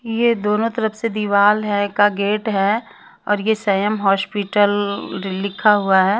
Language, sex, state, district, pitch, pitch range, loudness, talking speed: Hindi, female, Bihar, West Champaran, 205 Hz, 200-215 Hz, -18 LUFS, 165 wpm